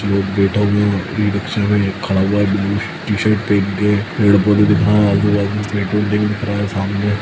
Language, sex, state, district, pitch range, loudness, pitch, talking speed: Hindi, male, Bihar, Lakhisarai, 100-105 Hz, -16 LUFS, 105 Hz, 235 wpm